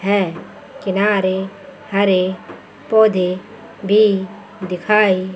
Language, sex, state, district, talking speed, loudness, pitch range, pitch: Hindi, female, Chandigarh, Chandigarh, 65 wpm, -17 LUFS, 185-210 Hz, 195 Hz